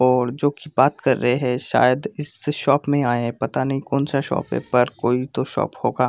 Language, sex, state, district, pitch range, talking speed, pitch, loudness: Hindi, male, Jharkhand, Sahebganj, 125-140 Hz, 235 wpm, 130 Hz, -21 LUFS